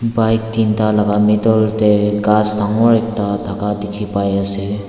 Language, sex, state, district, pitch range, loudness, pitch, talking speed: Nagamese, male, Nagaland, Dimapur, 105-110 Hz, -15 LUFS, 105 Hz, 145 wpm